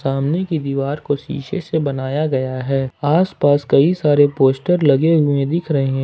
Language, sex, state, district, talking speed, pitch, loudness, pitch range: Hindi, male, Jharkhand, Ranchi, 190 wpm, 145 Hz, -17 LUFS, 135-160 Hz